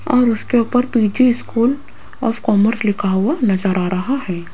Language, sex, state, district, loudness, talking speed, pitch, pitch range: Hindi, female, Rajasthan, Jaipur, -17 LUFS, 170 wpm, 230 Hz, 200-250 Hz